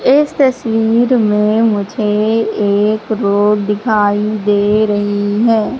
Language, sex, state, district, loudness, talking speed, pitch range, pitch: Hindi, female, Madhya Pradesh, Katni, -13 LUFS, 105 wpm, 205-225 Hz, 215 Hz